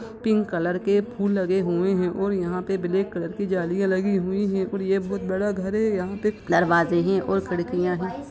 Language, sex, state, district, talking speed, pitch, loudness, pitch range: Hindi, female, Bihar, Sitamarhi, 210 wpm, 190 Hz, -24 LUFS, 180-200 Hz